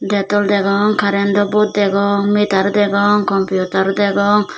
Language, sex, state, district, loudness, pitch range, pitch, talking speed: Chakma, female, Tripura, Dhalai, -15 LUFS, 200-205 Hz, 200 Hz, 130 wpm